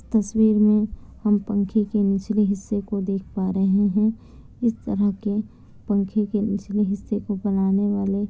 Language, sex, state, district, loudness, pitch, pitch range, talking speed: Hindi, female, Bihar, Kishanganj, -23 LUFS, 205 Hz, 200-215 Hz, 165 wpm